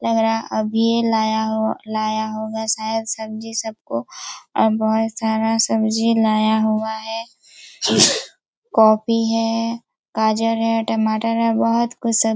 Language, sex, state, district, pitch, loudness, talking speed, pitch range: Hindi, female, Chhattisgarh, Raigarh, 220 Hz, -19 LUFS, 130 wpm, 220-225 Hz